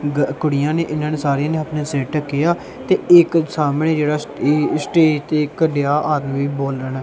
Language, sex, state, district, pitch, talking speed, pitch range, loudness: Punjabi, male, Punjab, Kapurthala, 150 Hz, 190 wpm, 140-155 Hz, -18 LUFS